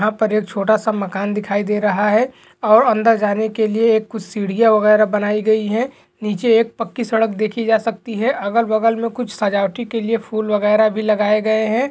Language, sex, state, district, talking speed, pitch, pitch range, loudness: Hindi, male, Maharashtra, Nagpur, 205 wpm, 220 Hz, 210-225 Hz, -17 LUFS